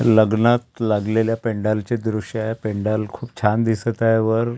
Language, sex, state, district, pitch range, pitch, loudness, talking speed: Marathi, male, Maharashtra, Gondia, 110-115 Hz, 110 Hz, -20 LUFS, 155 wpm